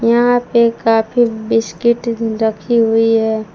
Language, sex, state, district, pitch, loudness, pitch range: Hindi, female, Jharkhand, Palamu, 225 Hz, -14 LUFS, 225-235 Hz